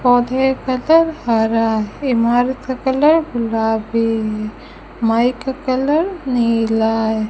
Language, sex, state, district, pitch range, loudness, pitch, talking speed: Hindi, female, Rajasthan, Bikaner, 225-265 Hz, -17 LUFS, 240 Hz, 125 wpm